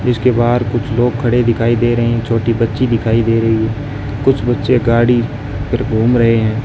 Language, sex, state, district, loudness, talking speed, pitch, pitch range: Hindi, male, Rajasthan, Bikaner, -14 LUFS, 200 wpm, 115 Hz, 115-120 Hz